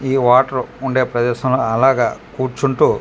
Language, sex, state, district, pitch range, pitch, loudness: Telugu, male, Andhra Pradesh, Manyam, 125-135 Hz, 130 Hz, -16 LUFS